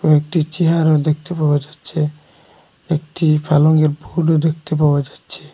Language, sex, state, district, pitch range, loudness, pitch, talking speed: Bengali, male, Assam, Hailakandi, 150-160 Hz, -17 LUFS, 155 Hz, 120 wpm